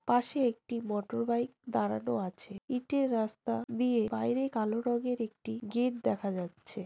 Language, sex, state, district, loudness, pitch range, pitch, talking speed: Bengali, female, West Bengal, Jhargram, -33 LUFS, 215-245 Hz, 235 Hz, 130 wpm